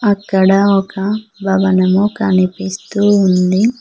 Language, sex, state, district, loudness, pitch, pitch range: Telugu, female, Telangana, Mahabubabad, -14 LUFS, 195 Hz, 190-205 Hz